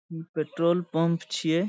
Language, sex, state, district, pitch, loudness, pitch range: Maithili, male, Bihar, Saharsa, 165 Hz, -27 LUFS, 160-170 Hz